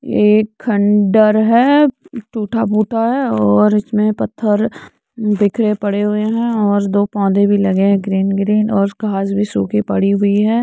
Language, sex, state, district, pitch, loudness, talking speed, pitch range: Hindi, female, Uttar Pradesh, Muzaffarnagar, 210 Hz, -15 LUFS, 170 wpm, 200-220 Hz